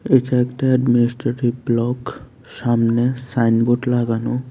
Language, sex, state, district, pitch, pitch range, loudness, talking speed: Bengali, male, Tripura, West Tripura, 120 Hz, 120-125 Hz, -19 LUFS, 95 wpm